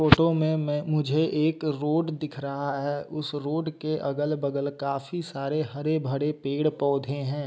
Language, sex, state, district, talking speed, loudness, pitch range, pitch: Hindi, male, Bihar, West Champaran, 170 wpm, -27 LUFS, 140-155 Hz, 150 Hz